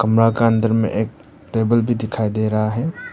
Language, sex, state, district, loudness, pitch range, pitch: Hindi, male, Arunachal Pradesh, Papum Pare, -19 LUFS, 110-115 Hz, 115 Hz